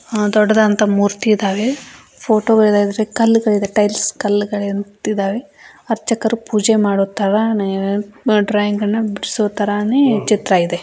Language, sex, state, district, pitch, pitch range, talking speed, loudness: Kannada, female, Karnataka, Belgaum, 210 Hz, 205-220 Hz, 100 wpm, -16 LUFS